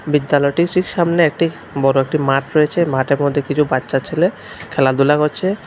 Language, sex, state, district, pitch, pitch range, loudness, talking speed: Bengali, male, Tripura, West Tripura, 150 Hz, 135-170 Hz, -16 LUFS, 160 wpm